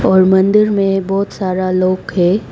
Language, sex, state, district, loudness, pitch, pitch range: Hindi, female, Arunachal Pradesh, Lower Dibang Valley, -14 LUFS, 190 Hz, 185-195 Hz